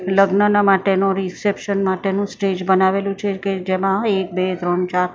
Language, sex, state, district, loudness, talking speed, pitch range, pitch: Gujarati, female, Maharashtra, Mumbai Suburban, -18 LUFS, 150 wpm, 185-200 Hz, 195 Hz